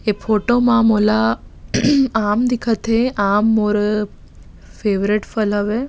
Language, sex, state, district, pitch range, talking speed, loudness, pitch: Chhattisgarhi, female, Chhattisgarh, Bastar, 205-230 Hz, 120 wpm, -17 LUFS, 215 Hz